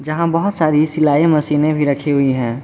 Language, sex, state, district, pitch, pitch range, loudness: Hindi, male, Jharkhand, Garhwa, 150 Hz, 145-155 Hz, -15 LUFS